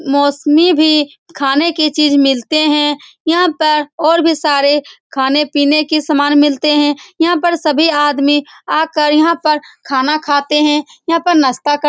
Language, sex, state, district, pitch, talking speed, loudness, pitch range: Hindi, female, Bihar, Saran, 300 Hz, 160 wpm, -13 LUFS, 290-315 Hz